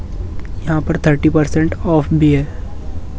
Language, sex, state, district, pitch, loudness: Hindi, male, Maharashtra, Mumbai Suburban, 145 Hz, -15 LUFS